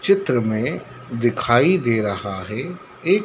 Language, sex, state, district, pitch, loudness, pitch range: Hindi, male, Madhya Pradesh, Dhar, 120 Hz, -20 LUFS, 110-180 Hz